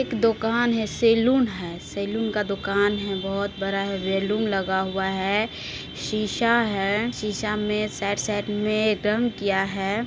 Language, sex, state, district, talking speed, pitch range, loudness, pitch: Maithili, female, Bihar, Supaul, 150 wpm, 195-220 Hz, -24 LUFS, 210 Hz